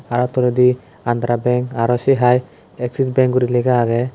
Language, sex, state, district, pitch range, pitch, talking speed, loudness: Chakma, male, Tripura, West Tripura, 120-125 Hz, 125 Hz, 175 wpm, -17 LUFS